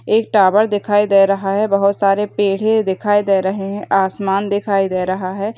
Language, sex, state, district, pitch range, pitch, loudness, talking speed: Hindi, female, Bihar, Begusarai, 195-205 Hz, 200 Hz, -16 LUFS, 195 wpm